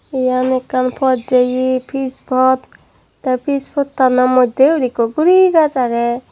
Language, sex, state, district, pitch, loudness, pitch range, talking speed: Chakma, female, Tripura, Dhalai, 255 Hz, -15 LUFS, 255-275 Hz, 135 wpm